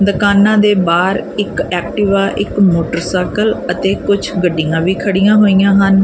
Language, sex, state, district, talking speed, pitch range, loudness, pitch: Punjabi, female, Punjab, Kapurthala, 140 wpm, 180-200 Hz, -13 LUFS, 195 Hz